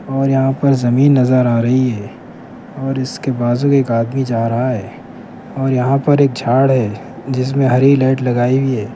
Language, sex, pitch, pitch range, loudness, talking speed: Urdu, male, 130 Hz, 120-135 Hz, -15 LUFS, 180 wpm